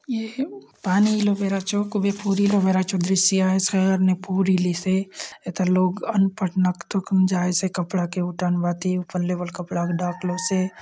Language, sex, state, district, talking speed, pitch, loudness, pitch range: Halbi, male, Chhattisgarh, Bastar, 175 wpm, 185 Hz, -22 LUFS, 180-195 Hz